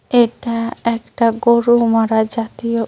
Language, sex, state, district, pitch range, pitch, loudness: Bengali, female, West Bengal, Cooch Behar, 225-235 Hz, 230 Hz, -16 LUFS